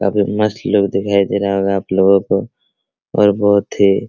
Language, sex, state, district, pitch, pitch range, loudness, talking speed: Hindi, male, Bihar, Araria, 100 Hz, 95-100 Hz, -15 LUFS, 220 wpm